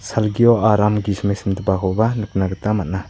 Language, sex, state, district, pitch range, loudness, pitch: Garo, male, Meghalaya, South Garo Hills, 95-110 Hz, -18 LUFS, 105 Hz